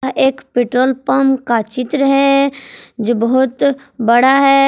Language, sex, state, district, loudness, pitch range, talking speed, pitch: Hindi, female, Jharkhand, Palamu, -14 LUFS, 245-275 Hz, 140 wpm, 265 Hz